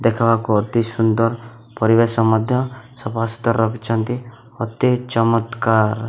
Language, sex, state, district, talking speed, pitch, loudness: Odia, male, Odisha, Malkangiri, 110 wpm, 115 Hz, -18 LUFS